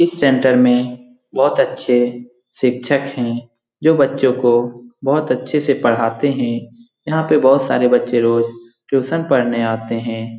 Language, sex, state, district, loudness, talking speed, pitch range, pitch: Hindi, male, Bihar, Lakhisarai, -16 LUFS, 150 wpm, 120-135 Hz, 125 Hz